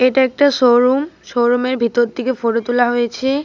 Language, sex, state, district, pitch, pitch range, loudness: Bengali, female, Jharkhand, Jamtara, 250 Hz, 240-260 Hz, -16 LUFS